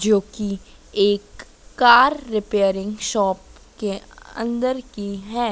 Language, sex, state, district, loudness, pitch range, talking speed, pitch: Hindi, female, Madhya Pradesh, Dhar, -20 LUFS, 200-235 Hz, 100 wpm, 210 Hz